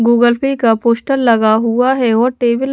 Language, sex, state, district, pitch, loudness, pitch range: Hindi, female, Chhattisgarh, Raipur, 240 Hz, -13 LUFS, 230-255 Hz